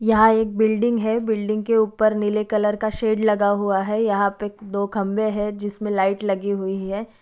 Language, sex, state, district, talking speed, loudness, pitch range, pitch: Hindi, female, Bihar, East Champaran, 205 wpm, -21 LUFS, 200-220 Hz, 210 Hz